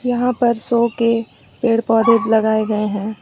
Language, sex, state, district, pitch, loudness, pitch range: Hindi, female, Uttar Pradesh, Lucknow, 230 Hz, -17 LUFS, 220-235 Hz